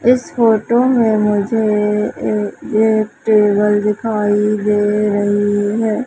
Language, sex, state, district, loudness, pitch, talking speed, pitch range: Hindi, female, Madhya Pradesh, Umaria, -15 LUFS, 210 Hz, 110 wpm, 210-220 Hz